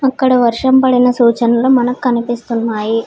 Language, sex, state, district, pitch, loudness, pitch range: Telugu, female, Telangana, Hyderabad, 245 Hz, -13 LUFS, 235-255 Hz